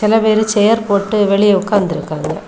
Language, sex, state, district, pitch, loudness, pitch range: Tamil, female, Tamil Nadu, Kanyakumari, 205 Hz, -14 LUFS, 195-215 Hz